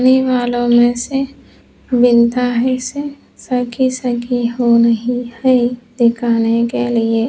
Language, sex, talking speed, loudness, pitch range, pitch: Hindi, female, 125 wpm, -15 LUFS, 235-255 Hz, 245 Hz